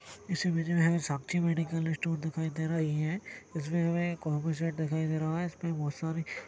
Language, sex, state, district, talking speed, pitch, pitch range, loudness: Hindi, male, Chhattisgarh, Balrampur, 220 wpm, 165 Hz, 155-170 Hz, -32 LUFS